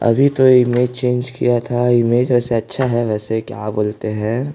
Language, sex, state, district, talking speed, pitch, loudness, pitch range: Hindi, male, Chhattisgarh, Jashpur, 185 wpm, 120 Hz, -17 LUFS, 110-125 Hz